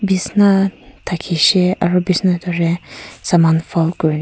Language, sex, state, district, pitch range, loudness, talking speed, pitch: Nagamese, female, Nagaland, Kohima, 165-185 Hz, -16 LUFS, 130 wpm, 175 Hz